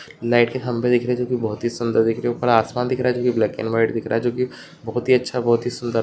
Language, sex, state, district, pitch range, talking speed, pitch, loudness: Hindi, male, Rajasthan, Churu, 115-125 Hz, 360 wpm, 120 Hz, -21 LUFS